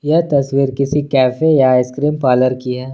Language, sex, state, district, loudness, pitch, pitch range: Hindi, male, Jharkhand, Ranchi, -14 LUFS, 135 Hz, 130-145 Hz